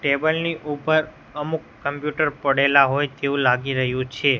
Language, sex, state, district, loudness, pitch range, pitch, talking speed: Gujarati, male, Gujarat, Gandhinagar, -21 LUFS, 135-155 Hz, 140 Hz, 150 wpm